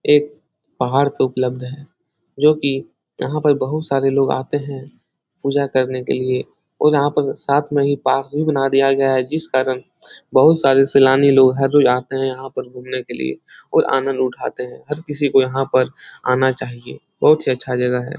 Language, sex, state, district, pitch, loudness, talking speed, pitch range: Hindi, male, Uttar Pradesh, Etah, 135 Hz, -18 LUFS, 200 wpm, 130-145 Hz